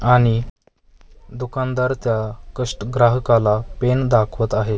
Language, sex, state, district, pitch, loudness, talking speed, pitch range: Marathi, male, Maharashtra, Mumbai Suburban, 120 Hz, -19 LUFS, 100 wpm, 110-125 Hz